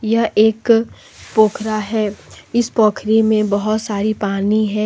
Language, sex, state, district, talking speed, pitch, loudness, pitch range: Hindi, female, Jharkhand, Deoghar, 135 wpm, 215 Hz, -17 LUFS, 210-220 Hz